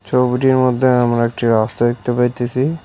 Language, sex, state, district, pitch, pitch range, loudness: Bengali, male, West Bengal, Cooch Behar, 125 Hz, 120-130 Hz, -16 LUFS